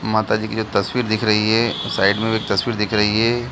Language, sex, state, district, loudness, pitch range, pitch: Hindi, male, Bihar, Gaya, -18 LUFS, 105-115 Hz, 110 Hz